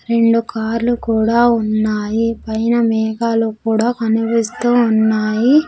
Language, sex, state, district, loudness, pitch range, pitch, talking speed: Telugu, female, Andhra Pradesh, Sri Satya Sai, -16 LUFS, 220-235 Hz, 225 Hz, 95 wpm